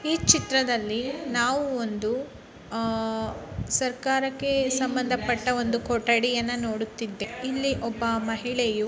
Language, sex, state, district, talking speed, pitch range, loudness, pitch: Kannada, female, Karnataka, Chamarajanagar, 100 wpm, 225-260 Hz, -26 LUFS, 240 Hz